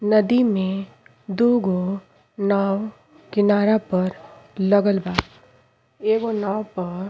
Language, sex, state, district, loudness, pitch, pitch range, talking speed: Bhojpuri, female, Uttar Pradesh, Ghazipur, -21 LUFS, 200 Hz, 190-215 Hz, 100 wpm